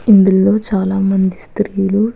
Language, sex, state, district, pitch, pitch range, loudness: Telugu, female, Andhra Pradesh, Krishna, 195 Hz, 190-210 Hz, -14 LUFS